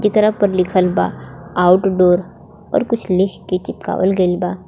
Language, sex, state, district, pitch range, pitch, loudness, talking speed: Bhojpuri, female, Jharkhand, Palamu, 180-205 Hz, 185 Hz, -16 LUFS, 155 wpm